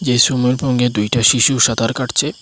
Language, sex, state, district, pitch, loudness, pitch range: Bengali, male, Assam, Hailakandi, 125 Hz, -14 LUFS, 120-130 Hz